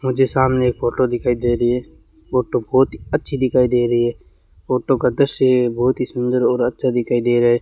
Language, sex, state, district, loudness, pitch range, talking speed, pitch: Hindi, male, Rajasthan, Bikaner, -18 LUFS, 120-130 Hz, 215 wpm, 125 Hz